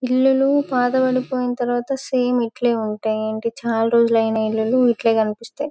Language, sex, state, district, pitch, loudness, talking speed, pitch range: Telugu, female, Telangana, Karimnagar, 240 Hz, -19 LUFS, 115 wpm, 225-255 Hz